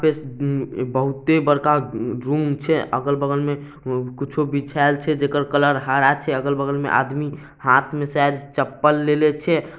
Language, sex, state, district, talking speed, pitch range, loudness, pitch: Maithili, male, Bihar, Samastipur, 130 wpm, 140-150 Hz, -20 LUFS, 145 Hz